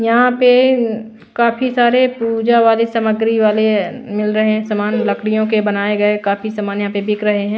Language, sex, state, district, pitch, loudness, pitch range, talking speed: Hindi, female, Bihar, Patna, 220 Hz, -15 LUFS, 210-235 Hz, 190 wpm